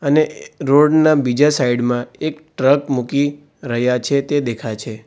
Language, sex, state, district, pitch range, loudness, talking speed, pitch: Gujarati, male, Gujarat, Valsad, 120-150 Hz, -17 LUFS, 165 wpm, 140 Hz